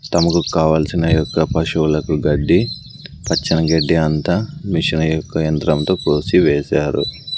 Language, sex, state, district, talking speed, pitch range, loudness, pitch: Telugu, male, Andhra Pradesh, Sri Satya Sai, 95 wpm, 75-85 Hz, -17 LUFS, 80 Hz